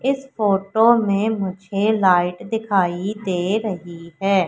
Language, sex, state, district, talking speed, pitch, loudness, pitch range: Hindi, female, Madhya Pradesh, Katni, 120 wpm, 200 Hz, -20 LUFS, 185-220 Hz